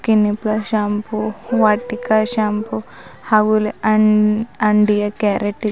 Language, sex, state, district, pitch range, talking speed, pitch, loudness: Kannada, female, Karnataka, Bidar, 210-215 Hz, 125 wpm, 215 Hz, -17 LUFS